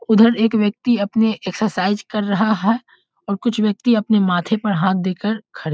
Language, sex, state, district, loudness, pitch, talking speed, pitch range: Hindi, male, Bihar, Muzaffarpur, -18 LUFS, 215 Hz, 200 wpm, 195-225 Hz